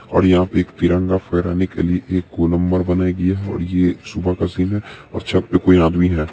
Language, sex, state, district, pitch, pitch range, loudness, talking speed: Maithili, male, Bihar, Supaul, 90 Hz, 85-95 Hz, -18 LUFS, 245 wpm